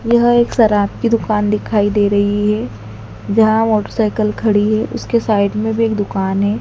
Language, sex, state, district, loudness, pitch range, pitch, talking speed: Hindi, female, Madhya Pradesh, Dhar, -15 LUFS, 205-225 Hz, 210 Hz, 180 wpm